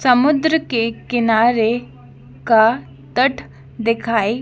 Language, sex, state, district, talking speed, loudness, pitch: Hindi, female, Madhya Pradesh, Dhar, 80 wpm, -17 LUFS, 230 Hz